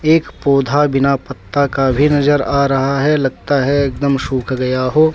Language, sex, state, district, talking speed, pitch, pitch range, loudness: Hindi, male, Jharkhand, Deoghar, 185 wpm, 140 Hz, 135-145 Hz, -15 LUFS